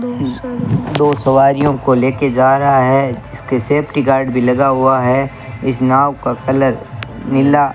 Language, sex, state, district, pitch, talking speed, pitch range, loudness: Hindi, male, Rajasthan, Bikaner, 135 Hz, 155 wpm, 130-140 Hz, -14 LUFS